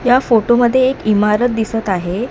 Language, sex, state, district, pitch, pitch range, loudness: Marathi, female, Maharashtra, Mumbai Suburban, 230 Hz, 210-245 Hz, -14 LUFS